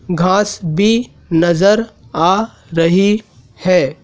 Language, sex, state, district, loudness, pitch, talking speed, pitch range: Hindi, male, Madhya Pradesh, Dhar, -15 LUFS, 190 Hz, 90 wpm, 175-210 Hz